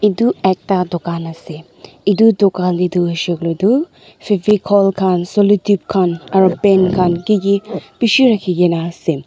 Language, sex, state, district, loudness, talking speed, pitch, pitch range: Nagamese, female, Nagaland, Dimapur, -15 LUFS, 125 wpm, 190 Hz, 175-205 Hz